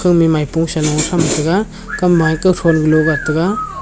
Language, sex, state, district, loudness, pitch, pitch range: Wancho, male, Arunachal Pradesh, Longding, -14 LUFS, 165 Hz, 155-185 Hz